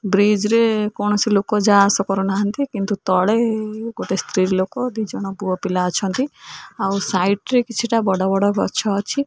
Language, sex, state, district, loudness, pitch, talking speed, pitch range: Odia, female, Odisha, Khordha, -19 LUFS, 205 Hz, 150 wpm, 195-220 Hz